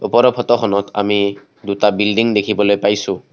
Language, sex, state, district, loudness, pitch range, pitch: Assamese, male, Assam, Kamrup Metropolitan, -16 LUFS, 100-115 Hz, 105 Hz